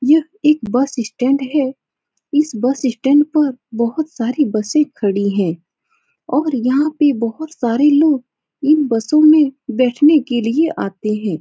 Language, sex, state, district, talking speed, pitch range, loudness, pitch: Hindi, female, Uttar Pradesh, Etah, 145 wpm, 235-300 Hz, -16 LUFS, 270 Hz